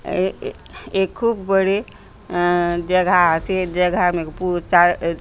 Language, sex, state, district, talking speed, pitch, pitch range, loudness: Halbi, female, Chhattisgarh, Bastar, 150 wpm, 180 Hz, 175-190 Hz, -19 LUFS